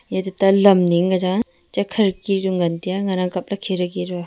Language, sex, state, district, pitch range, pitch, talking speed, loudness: Wancho, female, Arunachal Pradesh, Longding, 180-195 Hz, 185 Hz, 250 wpm, -19 LUFS